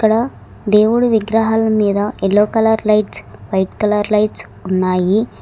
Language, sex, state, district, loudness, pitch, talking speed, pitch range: Telugu, female, Telangana, Hyderabad, -15 LUFS, 210 Hz, 120 wpm, 205-220 Hz